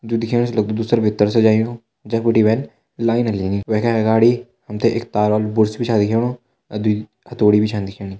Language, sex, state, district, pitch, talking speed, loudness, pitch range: Hindi, male, Uttarakhand, Tehri Garhwal, 110 Hz, 225 wpm, -18 LUFS, 105-115 Hz